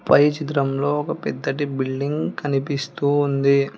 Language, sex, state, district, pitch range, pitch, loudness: Telugu, female, Telangana, Hyderabad, 140-145 Hz, 140 Hz, -22 LUFS